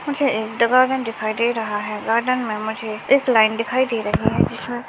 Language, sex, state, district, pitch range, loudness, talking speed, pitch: Hindi, male, Maharashtra, Nagpur, 215-255 Hz, -20 LUFS, 195 wpm, 230 Hz